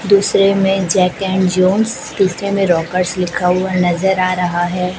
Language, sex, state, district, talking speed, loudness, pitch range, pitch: Hindi, female, Chhattisgarh, Raipur, 170 wpm, -15 LUFS, 180-195 Hz, 185 Hz